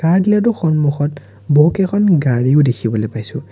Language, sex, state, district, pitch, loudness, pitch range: Assamese, male, Assam, Sonitpur, 145 Hz, -15 LUFS, 125-175 Hz